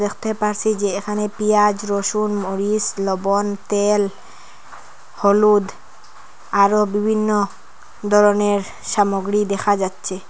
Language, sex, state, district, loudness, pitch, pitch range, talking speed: Bengali, female, Assam, Hailakandi, -19 LUFS, 205 Hz, 200-210 Hz, 95 wpm